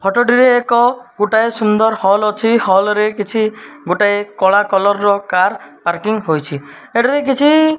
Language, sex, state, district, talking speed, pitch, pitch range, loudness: Odia, male, Odisha, Malkangiri, 155 wpm, 210 Hz, 195-235 Hz, -14 LUFS